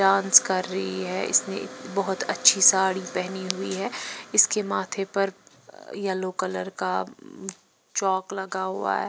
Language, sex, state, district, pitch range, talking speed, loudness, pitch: Hindi, female, Punjab, Pathankot, 185-195 Hz, 140 wpm, -24 LUFS, 190 Hz